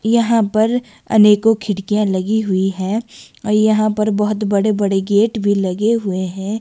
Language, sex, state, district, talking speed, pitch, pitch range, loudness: Hindi, female, Himachal Pradesh, Shimla, 165 wpm, 210 Hz, 200-220 Hz, -16 LUFS